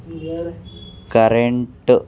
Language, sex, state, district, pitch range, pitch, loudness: Telugu, male, Andhra Pradesh, Sri Satya Sai, 100-160 Hz, 115 Hz, -18 LUFS